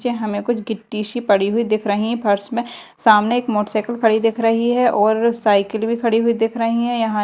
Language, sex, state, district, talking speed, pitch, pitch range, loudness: Hindi, female, Madhya Pradesh, Dhar, 225 wpm, 225 Hz, 215-235 Hz, -18 LUFS